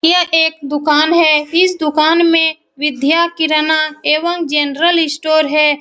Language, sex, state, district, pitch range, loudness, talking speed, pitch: Hindi, female, Bihar, Saran, 300-330 Hz, -13 LUFS, 135 wpm, 315 Hz